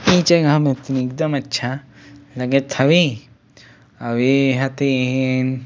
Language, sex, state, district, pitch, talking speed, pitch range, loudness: Chhattisgarhi, male, Chhattisgarh, Sukma, 135 Hz, 135 wpm, 130-145 Hz, -18 LUFS